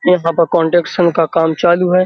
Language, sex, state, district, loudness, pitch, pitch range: Hindi, male, Uttar Pradesh, Hamirpur, -13 LUFS, 170 Hz, 165-180 Hz